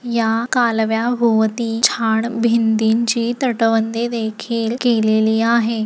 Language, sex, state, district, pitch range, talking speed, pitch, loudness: Marathi, female, Maharashtra, Nagpur, 225-235 Hz, 90 wpm, 230 Hz, -17 LUFS